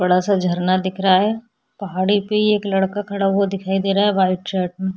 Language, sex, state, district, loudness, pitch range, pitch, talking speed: Hindi, female, Chhattisgarh, Sukma, -19 LUFS, 185-205 Hz, 195 Hz, 240 wpm